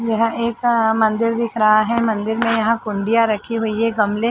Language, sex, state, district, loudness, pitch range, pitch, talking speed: Hindi, female, Uttar Pradesh, Varanasi, -18 LUFS, 215-230 Hz, 225 Hz, 220 wpm